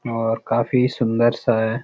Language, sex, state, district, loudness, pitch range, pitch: Hindi, male, Uttarakhand, Uttarkashi, -20 LUFS, 115-120 Hz, 115 Hz